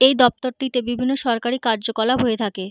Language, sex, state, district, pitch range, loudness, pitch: Bengali, female, West Bengal, Jhargram, 225-255 Hz, -20 LUFS, 245 Hz